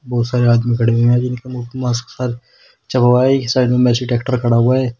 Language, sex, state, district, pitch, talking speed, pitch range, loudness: Hindi, male, Uttar Pradesh, Shamli, 125 Hz, 180 wpm, 120-125 Hz, -16 LUFS